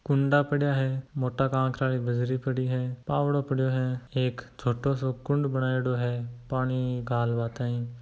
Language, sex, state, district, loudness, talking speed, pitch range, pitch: Hindi, male, Rajasthan, Nagaur, -28 LUFS, 180 wpm, 125-135 Hz, 130 Hz